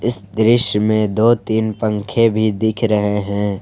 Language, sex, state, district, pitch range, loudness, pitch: Hindi, male, Jharkhand, Palamu, 105-115 Hz, -16 LUFS, 110 Hz